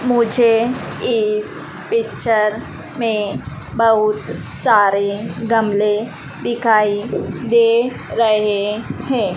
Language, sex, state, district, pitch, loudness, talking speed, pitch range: Hindi, female, Madhya Pradesh, Dhar, 225 Hz, -17 LUFS, 70 wpm, 210-235 Hz